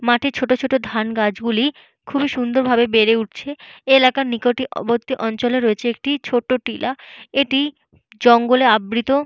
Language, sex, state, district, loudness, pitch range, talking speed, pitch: Bengali, female, Jharkhand, Jamtara, -18 LUFS, 235-270 Hz, 135 wpm, 245 Hz